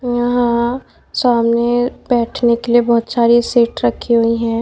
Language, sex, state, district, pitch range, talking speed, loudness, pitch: Hindi, female, Maharashtra, Mumbai Suburban, 235-240 Hz, 145 wpm, -15 LUFS, 235 Hz